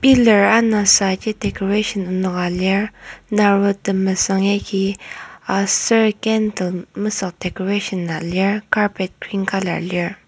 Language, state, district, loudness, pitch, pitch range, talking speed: Ao, Nagaland, Kohima, -18 LUFS, 195 Hz, 190-210 Hz, 105 wpm